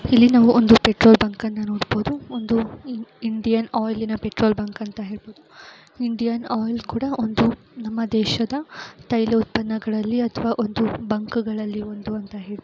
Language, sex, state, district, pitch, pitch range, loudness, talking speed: Kannada, female, Karnataka, Chamarajanagar, 225 Hz, 215-235 Hz, -21 LUFS, 135 wpm